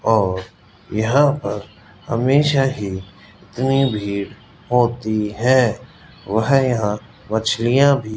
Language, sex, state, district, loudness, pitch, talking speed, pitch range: Hindi, male, Rajasthan, Jaipur, -19 LUFS, 110 Hz, 105 wpm, 105-130 Hz